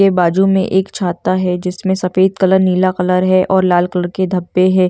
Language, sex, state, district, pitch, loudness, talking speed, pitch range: Hindi, female, Delhi, New Delhi, 185 Hz, -14 LUFS, 220 wpm, 180-190 Hz